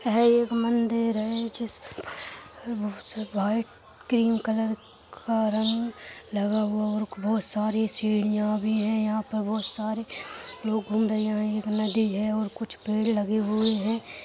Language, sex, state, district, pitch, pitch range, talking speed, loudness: Hindi, female, Uttar Pradesh, Jyotiba Phule Nagar, 215 Hz, 215-225 Hz, 160 wpm, -27 LUFS